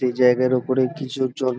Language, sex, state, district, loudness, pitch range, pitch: Bengali, male, West Bengal, Dakshin Dinajpur, -21 LUFS, 125-130 Hz, 130 Hz